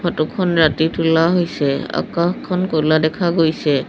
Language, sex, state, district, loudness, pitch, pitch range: Assamese, female, Assam, Sonitpur, -17 LUFS, 165 Hz, 155-175 Hz